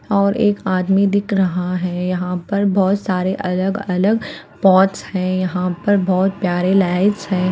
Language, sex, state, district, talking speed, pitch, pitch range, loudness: Hindi, female, Bihar, Patna, 160 wpm, 190 Hz, 185-200 Hz, -17 LUFS